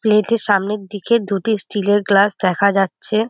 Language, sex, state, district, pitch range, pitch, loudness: Bengali, female, West Bengal, Jhargram, 195-215 Hz, 205 Hz, -17 LUFS